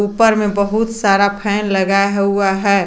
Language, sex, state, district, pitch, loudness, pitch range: Hindi, female, Jharkhand, Garhwa, 200 Hz, -15 LUFS, 200-210 Hz